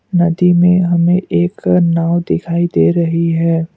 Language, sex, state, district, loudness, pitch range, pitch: Hindi, male, Assam, Kamrup Metropolitan, -13 LUFS, 165-175 Hz, 170 Hz